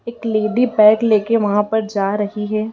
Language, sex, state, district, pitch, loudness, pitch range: Hindi, female, Madhya Pradesh, Dhar, 215 Hz, -16 LUFS, 210-225 Hz